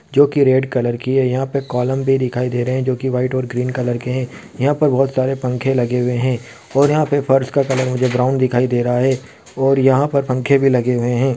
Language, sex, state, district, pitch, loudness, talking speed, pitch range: Hindi, male, Bihar, Kishanganj, 130 Hz, -17 LUFS, 255 wpm, 125-135 Hz